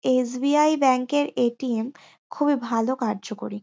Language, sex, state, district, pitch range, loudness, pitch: Bengali, female, West Bengal, North 24 Parganas, 230-285 Hz, -23 LUFS, 255 Hz